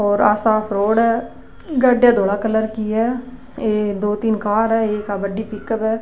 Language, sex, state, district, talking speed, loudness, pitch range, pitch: Rajasthani, female, Rajasthan, Nagaur, 200 wpm, -18 LUFS, 210-230 Hz, 220 Hz